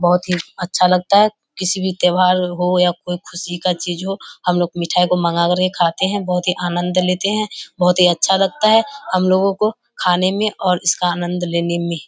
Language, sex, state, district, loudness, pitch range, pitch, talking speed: Hindi, female, Bihar, Kishanganj, -17 LUFS, 175-190 Hz, 180 Hz, 210 wpm